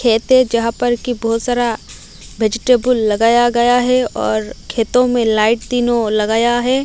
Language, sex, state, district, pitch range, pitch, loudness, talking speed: Hindi, female, Odisha, Malkangiri, 220-245 Hz, 235 Hz, -15 LUFS, 150 wpm